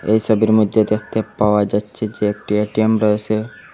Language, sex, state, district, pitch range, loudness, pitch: Bengali, male, Assam, Hailakandi, 105-110 Hz, -17 LUFS, 105 Hz